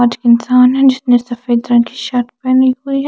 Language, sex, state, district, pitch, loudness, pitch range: Hindi, female, Chandigarh, Chandigarh, 245 Hz, -12 LUFS, 240-260 Hz